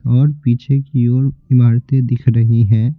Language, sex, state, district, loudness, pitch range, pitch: Hindi, male, Bihar, Patna, -14 LUFS, 120-135 Hz, 125 Hz